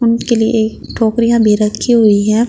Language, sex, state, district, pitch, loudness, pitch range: Hindi, female, Delhi, New Delhi, 225 Hz, -12 LUFS, 215-235 Hz